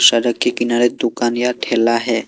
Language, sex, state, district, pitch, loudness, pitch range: Hindi, male, Assam, Kamrup Metropolitan, 120 Hz, -17 LUFS, 115-120 Hz